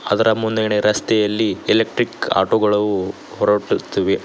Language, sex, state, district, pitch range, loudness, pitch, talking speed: Kannada, male, Karnataka, Koppal, 105-110 Hz, -18 LUFS, 105 Hz, 100 wpm